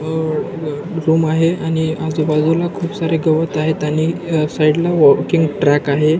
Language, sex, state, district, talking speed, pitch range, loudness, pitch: Marathi, male, Maharashtra, Nagpur, 145 wpm, 155-165 Hz, -16 LUFS, 160 Hz